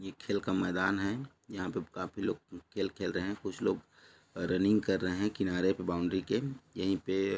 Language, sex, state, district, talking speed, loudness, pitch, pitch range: Hindi, male, Chhattisgarh, Bilaspur, 105 wpm, -34 LUFS, 95 Hz, 95-100 Hz